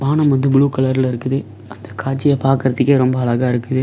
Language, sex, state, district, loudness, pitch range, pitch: Tamil, male, Tamil Nadu, Namakkal, -16 LUFS, 125-135 Hz, 130 Hz